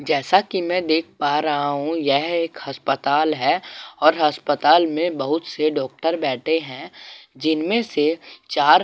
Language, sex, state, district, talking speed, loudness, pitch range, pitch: Hindi, male, Goa, North and South Goa, 155 wpm, -20 LUFS, 145-165 Hz, 155 Hz